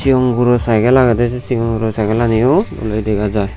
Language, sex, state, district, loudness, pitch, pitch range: Chakma, male, Tripura, Unakoti, -14 LUFS, 115 Hz, 110-120 Hz